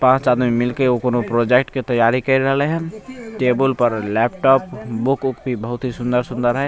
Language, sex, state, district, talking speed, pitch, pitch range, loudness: Maithili, male, Bihar, Begusarai, 190 wpm, 125 Hz, 120-135 Hz, -18 LUFS